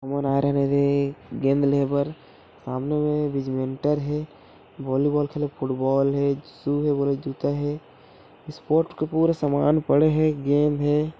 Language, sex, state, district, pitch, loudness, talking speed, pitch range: Chhattisgarhi, male, Chhattisgarh, Korba, 145 Hz, -23 LUFS, 135 wpm, 140-150 Hz